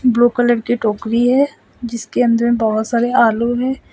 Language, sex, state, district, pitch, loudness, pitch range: Hindi, male, Assam, Sonitpur, 235 Hz, -16 LUFS, 230-245 Hz